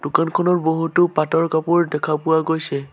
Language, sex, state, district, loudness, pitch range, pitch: Assamese, male, Assam, Sonitpur, -19 LUFS, 155-170 Hz, 160 Hz